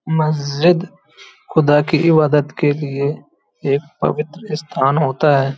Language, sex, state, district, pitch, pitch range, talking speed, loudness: Hindi, male, Uttar Pradesh, Hamirpur, 150 Hz, 140-160 Hz, 130 wpm, -17 LUFS